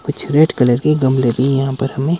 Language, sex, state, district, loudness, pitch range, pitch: Hindi, male, Himachal Pradesh, Shimla, -15 LUFS, 130-150 Hz, 135 Hz